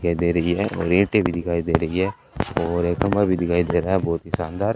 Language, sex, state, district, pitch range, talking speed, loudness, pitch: Hindi, male, Rajasthan, Bikaner, 85-95 Hz, 265 wpm, -22 LUFS, 85 Hz